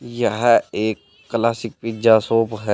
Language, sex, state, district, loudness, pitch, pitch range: Hindi, male, Uttar Pradesh, Saharanpur, -19 LUFS, 115 Hz, 110-115 Hz